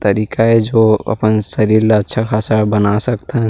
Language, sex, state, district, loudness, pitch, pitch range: Chhattisgarhi, male, Chhattisgarh, Rajnandgaon, -14 LUFS, 110 Hz, 105-110 Hz